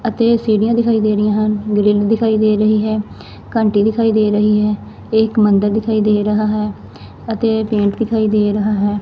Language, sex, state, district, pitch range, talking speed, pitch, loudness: Punjabi, female, Punjab, Fazilka, 210-220 Hz, 185 wpm, 215 Hz, -15 LUFS